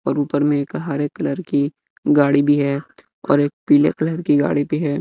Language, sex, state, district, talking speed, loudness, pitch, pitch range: Hindi, male, Bihar, West Champaran, 215 wpm, -19 LUFS, 145 Hz, 145-150 Hz